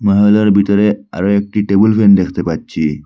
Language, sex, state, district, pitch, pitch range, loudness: Bengali, male, Assam, Hailakandi, 100 Hz, 90-105 Hz, -13 LUFS